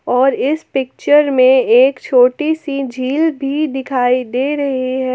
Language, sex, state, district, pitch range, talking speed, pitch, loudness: Hindi, female, Jharkhand, Palamu, 255-290 Hz, 150 wpm, 265 Hz, -14 LUFS